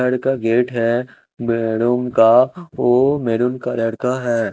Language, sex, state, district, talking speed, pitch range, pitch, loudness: Hindi, male, Chandigarh, Chandigarh, 145 wpm, 115-125 Hz, 125 Hz, -17 LUFS